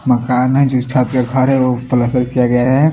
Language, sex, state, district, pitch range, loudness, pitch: Hindi, male, Haryana, Rohtak, 125-130 Hz, -14 LUFS, 125 Hz